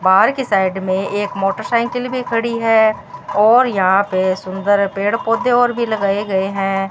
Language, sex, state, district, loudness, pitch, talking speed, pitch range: Hindi, female, Rajasthan, Bikaner, -16 LUFS, 205 Hz, 175 wpm, 195-235 Hz